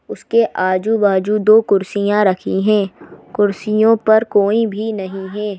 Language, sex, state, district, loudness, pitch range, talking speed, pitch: Hindi, female, Madhya Pradesh, Bhopal, -15 LUFS, 195-220 Hz, 130 wpm, 210 Hz